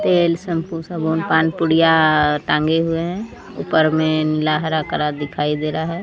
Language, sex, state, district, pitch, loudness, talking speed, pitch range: Hindi, female, Odisha, Sambalpur, 160 Hz, -18 LUFS, 170 wpm, 155-165 Hz